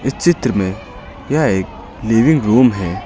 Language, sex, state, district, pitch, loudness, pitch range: Hindi, male, Uttar Pradesh, Lucknow, 110 Hz, -15 LUFS, 95-125 Hz